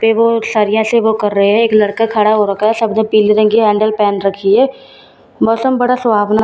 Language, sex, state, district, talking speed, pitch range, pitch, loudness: Hindi, female, Bihar, Katihar, 270 wpm, 210-225 Hz, 215 Hz, -12 LUFS